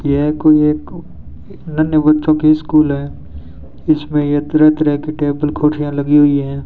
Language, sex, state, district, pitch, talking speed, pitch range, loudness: Hindi, male, Rajasthan, Bikaner, 150 Hz, 160 wpm, 145-155 Hz, -14 LUFS